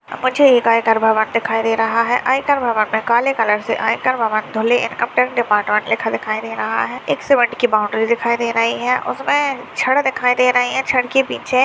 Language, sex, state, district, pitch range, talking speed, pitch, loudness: Hindi, male, Maharashtra, Dhule, 225-255 Hz, 215 wpm, 235 Hz, -16 LUFS